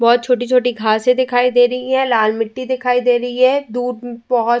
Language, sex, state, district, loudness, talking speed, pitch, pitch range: Hindi, female, Uttar Pradesh, Jyotiba Phule Nagar, -16 LUFS, 210 wpm, 245 Hz, 240-250 Hz